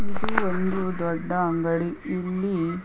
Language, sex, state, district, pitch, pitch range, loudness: Kannada, female, Karnataka, Chamarajanagar, 180 Hz, 170-190 Hz, -26 LUFS